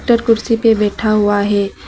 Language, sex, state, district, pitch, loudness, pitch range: Hindi, female, West Bengal, Alipurduar, 215 Hz, -14 LUFS, 205-230 Hz